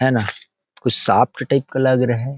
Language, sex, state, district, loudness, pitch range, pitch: Hindi, male, Chhattisgarh, Rajnandgaon, -17 LUFS, 125-135 Hz, 130 Hz